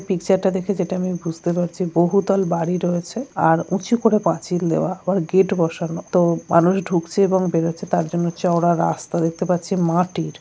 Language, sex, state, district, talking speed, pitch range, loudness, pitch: Bengali, female, West Bengal, Kolkata, 165 wpm, 170-190 Hz, -20 LUFS, 175 Hz